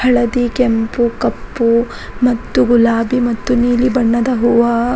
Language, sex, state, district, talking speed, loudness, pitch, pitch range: Kannada, female, Karnataka, Raichur, 120 wpm, -14 LUFS, 240 Hz, 235-245 Hz